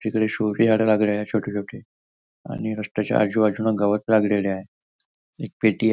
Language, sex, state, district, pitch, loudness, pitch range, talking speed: Marathi, male, Maharashtra, Nagpur, 105 Hz, -22 LUFS, 100-110 Hz, 170 wpm